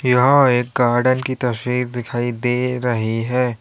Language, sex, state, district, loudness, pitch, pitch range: Hindi, male, Uttar Pradesh, Lalitpur, -18 LUFS, 125 Hz, 120-125 Hz